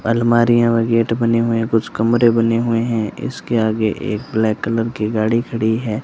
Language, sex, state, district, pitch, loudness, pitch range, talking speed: Hindi, male, Rajasthan, Bikaner, 115 Hz, -17 LUFS, 110-115 Hz, 200 wpm